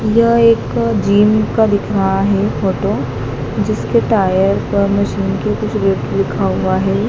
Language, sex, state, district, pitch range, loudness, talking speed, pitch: Hindi, female, Madhya Pradesh, Dhar, 195-215 Hz, -15 LUFS, 150 wpm, 200 Hz